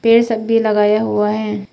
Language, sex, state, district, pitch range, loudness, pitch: Hindi, female, Arunachal Pradesh, Papum Pare, 210-225 Hz, -15 LUFS, 215 Hz